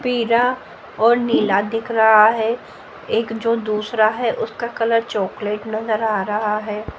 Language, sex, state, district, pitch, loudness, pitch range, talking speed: Hindi, female, Haryana, Jhajjar, 220 Hz, -19 LUFS, 215-230 Hz, 145 wpm